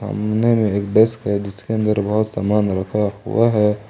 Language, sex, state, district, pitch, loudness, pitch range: Hindi, male, Jharkhand, Ranchi, 105 Hz, -18 LUFS, 100-110 Hz